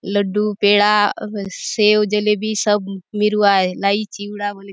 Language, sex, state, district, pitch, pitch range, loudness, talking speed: Halbi, female, Chhattisgarh, Bastar, 205 Hz, 200-210 Hz, -17 LUFS, 115 wpm